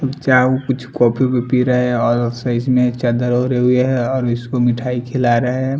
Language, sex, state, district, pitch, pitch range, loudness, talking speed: Hindi, male, Bihar, Patna, 125 Hz, 120-130 Hz, -16 LUFS, 195 wpm